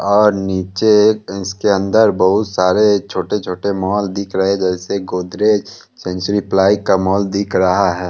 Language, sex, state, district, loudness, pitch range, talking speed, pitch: Hindi, male, Bihar, Kishanganj, -15 LUFS, 95-105 Hz, 140 wpm, 100 Hz